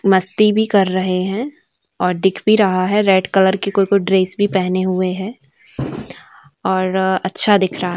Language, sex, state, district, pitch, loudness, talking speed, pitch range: Hindi, female, Bihar, Saran, 190 Hz, -16 LUFS, 180 wpm, 185-205 Hz